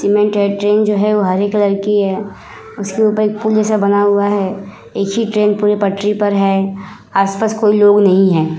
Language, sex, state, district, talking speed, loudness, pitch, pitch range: Hindi, female, Uttar Pradesh, Muzaffarnagar, 165 wpm, -14 LUFS, 205 Hz, 195-210 Hz